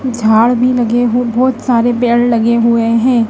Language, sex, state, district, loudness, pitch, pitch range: Hindi, female, Madhya Pradesh, Dhar, -12 LUFS, 240 Hz, 230-245 Hz